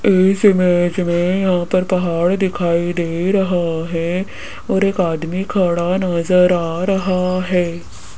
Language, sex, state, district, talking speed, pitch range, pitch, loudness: Hindi, female, Rajasthan, Jaipur, 130 wpm, 170-185 Hz, 180 Hz, -17 LUFS